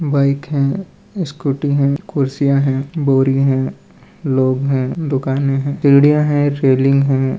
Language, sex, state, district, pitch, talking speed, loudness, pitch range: Hindi, male, Rajasthan, Nagaur, 140 Hz, 130 wpm, -16 LUFS, 135-145 Hz